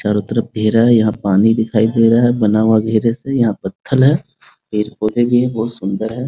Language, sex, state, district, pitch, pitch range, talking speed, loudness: Hindi, male, Bihar, Muzaffarpur, 110 Hz, 110-120 Hz, 240 wpm, -15 LUFS